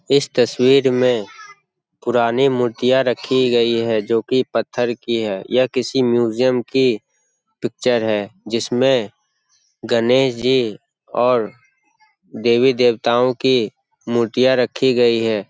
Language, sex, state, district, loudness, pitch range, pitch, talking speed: Hindi, male, Bihar, Jamui, -17 LUFS, 115-130 Hz, 125 Hz, 115 wpm